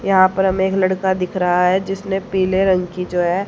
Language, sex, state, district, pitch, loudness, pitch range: Hindi, female, Haryana, Rohtak, 190 Hz, -17 LUFS, 180-190 Hz